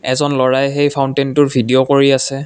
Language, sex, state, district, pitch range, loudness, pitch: Assamese, male, Assam, Kamrup Metropolitan, 130-140 Hz, -14 LUFS, 135 Hz